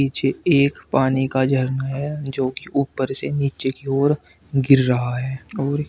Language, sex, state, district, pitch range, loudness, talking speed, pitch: Hindi, male, Uttar Pradesh, Shamli, 130-140 Hz, -21 LUFS, 175 wpm, 135 Hz